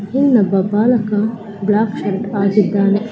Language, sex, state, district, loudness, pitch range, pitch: Kannada, female, Karnataka, Belgaum, -16 LUFS, 200-220 Hz, 210 Hz